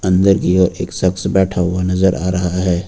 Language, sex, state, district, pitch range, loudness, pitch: Hindi, male, Uttar Pradesh, Lucknow, 90-95 Hz, -16 LUFS, 90 Hz